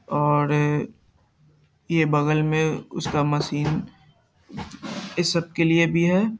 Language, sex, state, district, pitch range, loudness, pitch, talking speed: Hindi, male, Bihar, Saharsa, 150-170 Hz, -22 LUFS, 155 Hz, 120 wpm